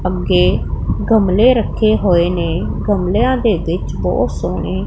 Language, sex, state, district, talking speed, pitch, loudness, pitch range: Punjabi, female, Punjab, Pathankot, 125 wpm, 205 Hz, -15 LUFS, 175-225 Hz